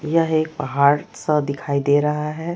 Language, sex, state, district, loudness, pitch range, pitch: Hindi, female, Chhattisgarh, Raipur, -20 LUFS, 140-155 Hz, 150 Hz